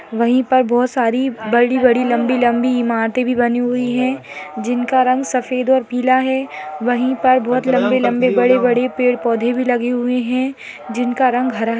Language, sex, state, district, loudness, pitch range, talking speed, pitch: Hindi, female, Rajasthan, Nagaur, -16 LUFS, 240-255 Hz, 160 wpm, 250 Hz